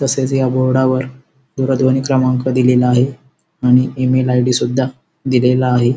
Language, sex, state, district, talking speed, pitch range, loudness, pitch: Marathi, male, Maharashtra, Sindhudurg, 140 wpm, 125-130 Hz, -15 LUFS, 130 Hz